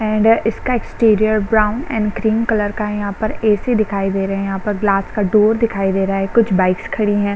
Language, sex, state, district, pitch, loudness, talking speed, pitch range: Hindi, female, Chhattisgarh, Korba, 210 Hz, -17 LUFS, 235 wpm, 200-220 Hz